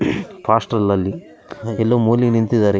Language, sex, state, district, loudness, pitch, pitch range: Kannada, male, Karnataka, Raichur, -18 LUFS, 115 Hz, 105-115 Hz